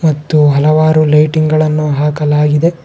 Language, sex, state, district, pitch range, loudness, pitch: Kannada, male, Karnataka, Bangalore, 150-155 Hz, -11 LUFS, 155 Hz